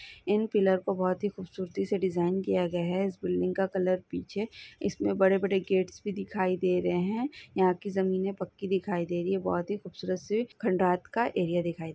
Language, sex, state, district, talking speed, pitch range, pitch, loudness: Hindi, female, Chhattisgarh, Sukma, 210 wpm, 180-195 Hz, 190 Hz, -30 LUFS